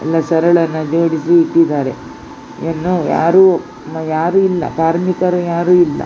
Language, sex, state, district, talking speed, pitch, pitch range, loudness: Kannada, female, Karnataka, Dakshina Kannada, 100 wpm, 170 Hz, 160-180 Hz, -14 LUFS